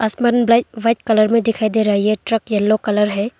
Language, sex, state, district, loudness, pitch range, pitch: Hindi, female, Arunachal Pradesh, Longding, -16 LUFS, 210-230 Hz, 220 Hz